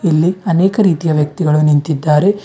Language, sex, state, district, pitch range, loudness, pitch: Kannada, female, Karnataka, Bidar, 150-190 Hz, -13 LUFS, 165 Hz